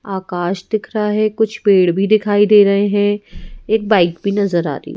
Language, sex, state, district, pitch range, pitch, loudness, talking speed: Hindi, female, Madhya Pradesh, Bhopal, 190-215 Hz, 205 Hz, -15 LUFS, 205 wpm